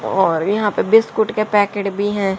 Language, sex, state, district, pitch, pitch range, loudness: Hindi, female, Haryana, Rohtak, 205 Hz, 200-215 Hz, -17 LUFS